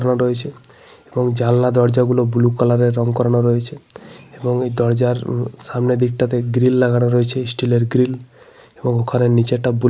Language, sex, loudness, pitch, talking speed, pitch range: Bengali, male, -17 LUFS, 125 Hz, 165 wpm, 120-125 Hz